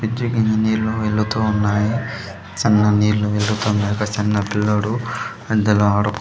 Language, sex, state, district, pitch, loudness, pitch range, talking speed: Telugu, male, Andhra Pradesh, Sri Satya Sai, 105 Hz, -19 LUFS, 105-110 Hz, 135 wpm